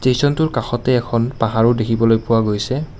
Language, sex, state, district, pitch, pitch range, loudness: Assamese, male, Assam, Kamrup Metropolitan, 120 Hz, 115-130 Hz, -17 LUFS